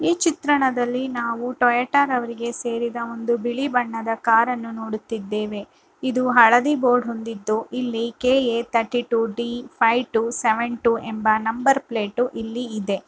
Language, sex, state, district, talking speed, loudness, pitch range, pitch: Kannada, female, Karnataka, Raichur, 130 wpm, -21 LUFS, 225-250 Hz, 235 Hz